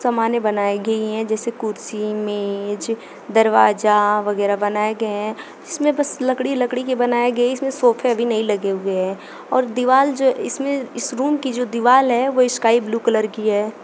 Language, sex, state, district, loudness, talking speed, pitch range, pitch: Hindi, female, Uttar Pradesh, Shamli, -19 LUFS, 180 wpm, 210-255 Hz, 230 Hz